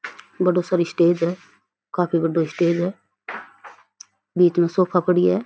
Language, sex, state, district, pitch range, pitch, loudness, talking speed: Rajasthani, female, Rajasthan, Churu, 170-180 Hz, 175 Hz, -20 LUFS, 145 wpm